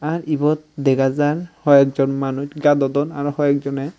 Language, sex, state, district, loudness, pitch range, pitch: Chakma, male, Tripura, Unakoti, -18 LUFS, 140-150 Hz, 145 Hz